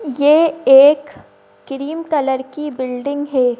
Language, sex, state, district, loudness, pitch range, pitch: Hindi, female, Madhya Pradesh, Bhopal, -15 LUFS, 265-295 Hz, 285 Hz